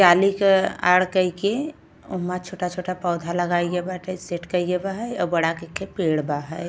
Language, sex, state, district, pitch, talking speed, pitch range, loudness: Bhojpuri, female, Uttar Pradesh, Ghazipur, 180 Hz, 180 wpm, 175-185 Hz, -23 LUFS